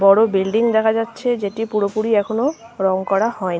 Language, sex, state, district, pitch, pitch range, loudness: Bengali, female, West Bengal, Malda, 220 Hz, 195-225 Hz, -18 LUFS